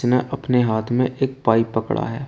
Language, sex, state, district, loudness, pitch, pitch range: Hindi, male, Uttar Pradesh, Shamli, -20 LUFS, 125 Hz, 115-130 Hz